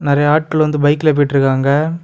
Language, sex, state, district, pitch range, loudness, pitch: Tamil, male, Tamil Nadu, Kanyakumari, 140-155 Hz, -14 LUFS, 145 Hz